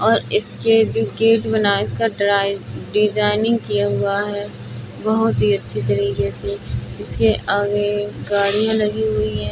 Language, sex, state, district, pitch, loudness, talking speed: Hindi, female, Uttar Pradesh, Budaun, 200 Hz, -19 LUFS, 140 wpm